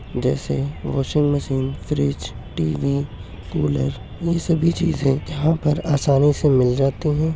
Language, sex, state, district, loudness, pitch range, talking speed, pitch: Hindi, male, Uttar Pradesh, Hamirpur, -21 LUFS, 95-150 Hz, 130 wpm, 140 Hz